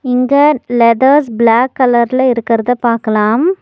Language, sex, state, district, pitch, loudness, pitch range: Tamil, female, Tamil Nadu, Nilgiris, 245 Hz, -11 LUFS, 230-260 Hz